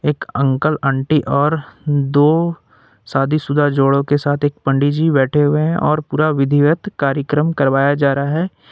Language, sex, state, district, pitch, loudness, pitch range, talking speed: Hindi, male, Jharkhand, Ranchi, 145 Hz, -16 LUFS, 140-150 Hz, 160 wpm